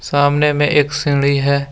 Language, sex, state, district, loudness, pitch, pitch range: Hindi, male, Jharkhand, Deoghar, -15 LUFS, 145 Hz, 140-145 Hz